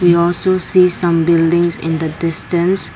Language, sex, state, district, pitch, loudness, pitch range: English, female, Assam, Kamrup Metropolitan, 170 Hz, -14 LUFS, 165-180 Hz